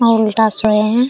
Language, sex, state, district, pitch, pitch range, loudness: Hindi, female, Jharkhand, Sahebganj, 220 Hz, 215-230 Hz, -14 LUFS